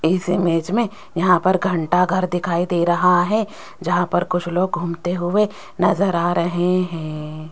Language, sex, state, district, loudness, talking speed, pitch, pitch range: Hindi, female, Rajasthan, Jaipur, -19 LUFS, 160 wpm, 175 Hz, 170-185 Hz